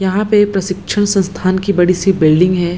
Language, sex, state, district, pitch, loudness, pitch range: Hindi, female, Bihar, Lakhisarai, 190 Hz, -13 LUFS, 180-200 Hz